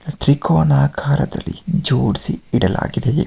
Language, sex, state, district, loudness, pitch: Kannada, male, Karnataka, Mysore, -17 LUFS, 140 Hz